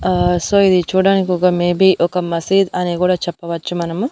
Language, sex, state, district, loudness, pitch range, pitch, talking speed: Telugu, female, Andhra Pradesh, Annamaya, -16 LUFS, 175-190 Hz, 180 Hz, 160 wpm